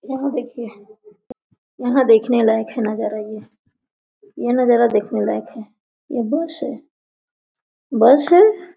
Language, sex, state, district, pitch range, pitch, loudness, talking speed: Hindi, female, Jharkhand, Sahebganj, 215-280 Hz, 245 Hz, -17 LUFS, 125 wpm